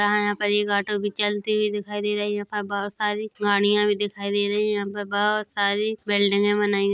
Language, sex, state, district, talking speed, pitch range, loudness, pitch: Hindi, female, Chhattisgarh, Korba, 260 wpm, 205-210 Hz, -23 LUFS, 205 Hz